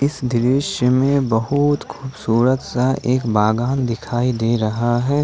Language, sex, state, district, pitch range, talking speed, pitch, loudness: Hindi, male, Jharkhand, Ranchi, 120-135 Hz, 135 wpm, 125 Hz, -18 LUFS